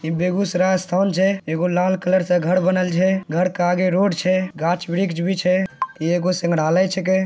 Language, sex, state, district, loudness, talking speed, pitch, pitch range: Angika, male, Bihar, Begusarai, -19 LUFS, 225 wpm, 185 Hz, 175-190 Hz